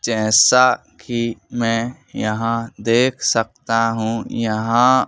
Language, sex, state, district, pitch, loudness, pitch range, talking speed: Hindi, male, Madhya Pradesh, Bhopal, 115 Hz, -18 LUFS, 115-120 Hz, 85 wpm